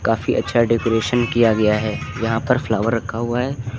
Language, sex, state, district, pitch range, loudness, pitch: Hindi, male, Uttar Pradesh, Lucknow, 115-120 Hz, -19 LUFS, 115 Hz